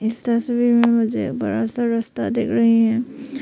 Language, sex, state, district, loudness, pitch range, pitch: Hindi, female, Arunachal Pradesh, Papum Pare, -19 LUFS, 230-240 Hz, 235 Hz